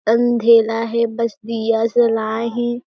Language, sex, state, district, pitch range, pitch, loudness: Chhattisgarhi, female, Chhattisgarh, Jashpur, 225-235 Hz, 230 Hz, -17 LUFS